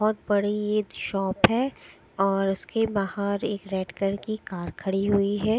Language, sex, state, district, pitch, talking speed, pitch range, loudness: Hindi, female, Odisha, Sambalpur, 200 Hz, 170 wpm, 195-215 Hz, -26 LUFS